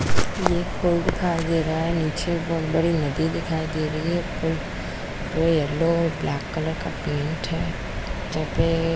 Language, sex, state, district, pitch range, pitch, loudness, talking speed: Hindi, female, Bihar, Kishanganj, 155-170 Hz, 165 Hz, -24 LUFS, 165 wpm